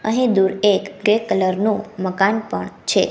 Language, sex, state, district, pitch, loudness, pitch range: Gujarati, female, Gujarat, Gandhinagar, 210 Hz, -19 LUFS, 195-215 Hz